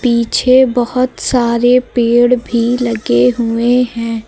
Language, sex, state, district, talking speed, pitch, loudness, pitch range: Hindi, female, Uttar Pradesh, Lucknow, 110 wpm, 240 Hz, -12 LUFS, 235-250 Hz